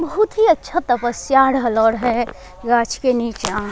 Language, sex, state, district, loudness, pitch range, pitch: Angika, female, Bihar, Bhagalpur, -18 LUFS, 230-270 Hz, 240 Hz